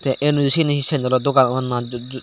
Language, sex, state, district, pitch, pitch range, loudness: Chakma, male, Tripura, Dhalai, 130 Hz, 125-145 Hz, -18 LUFS